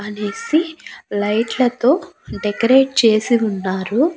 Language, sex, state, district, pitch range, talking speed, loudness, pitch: Telugu, female, Andhra Pradesh, Annamaya, 210-265 Hz, 70 wpm, -17 LUFS, 230 Hz